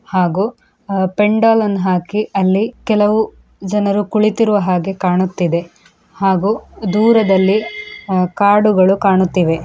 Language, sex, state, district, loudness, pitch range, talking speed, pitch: Kannada, female, Karnataka, Dakshina Kannada, -15 LUFS, 185-215 Hz, 80 wpm, 200 Hz